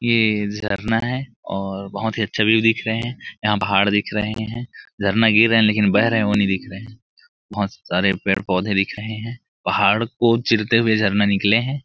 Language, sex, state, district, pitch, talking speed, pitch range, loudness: Hindi, male, Chhattisgarh, Bilaspur, 110 Hz, 200 wpm, 100-115 Hz, -19 LUFS